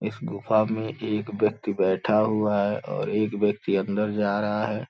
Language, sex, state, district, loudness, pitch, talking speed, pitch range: Hindi, male, Uttar Pradesh, Gorakhpur, -25 LUFS, 105 Hz, 185 wpm, 105-110 Hz